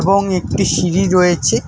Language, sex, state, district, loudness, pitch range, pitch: Bengali, male, West Bengal, Alipurduar, -15 LUFS, 170-190 Hz, 180 Hz